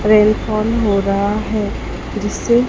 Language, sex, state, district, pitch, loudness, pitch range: Hindi, male, Chhattisgarh, Raipur, 215 Hz, -17 LUFS, 205-220 Hz